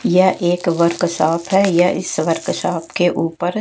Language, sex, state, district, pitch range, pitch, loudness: Hindi, female, Chhattisgarh, Raipur, 170-185 Hz, 175 Hz, -17 LUFS